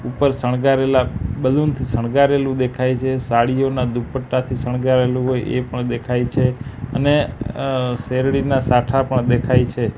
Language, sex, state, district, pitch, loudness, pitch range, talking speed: Gujarati, male, Gujarat, Gandhinagar, 125 Hz, -18 LUFS, 125-130 Hz, 130 wpm